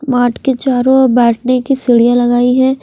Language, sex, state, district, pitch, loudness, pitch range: Hindi, female, Punjab, Fazilka, 250 Hz, -11 LUFS, 245-265 Hz